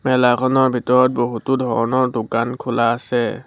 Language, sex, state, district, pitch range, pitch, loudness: Assamese, male, Assam, Sonitpur, 120-130 Hz, 125 Hz, -18 LUFS